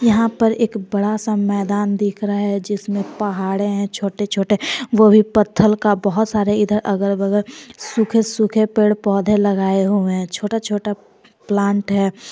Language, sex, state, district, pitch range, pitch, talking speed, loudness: Hindi, female, Jharkhand, Garhwa, 200-215 Hz, 205 Hz, 165 wpm, -18 LUFS